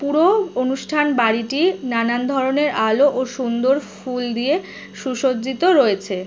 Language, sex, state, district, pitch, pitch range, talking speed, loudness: Bengali, female, West Bengal, Jhargram, 260 Hz, 240-290 Hz, 115 wpm, -19 LUFS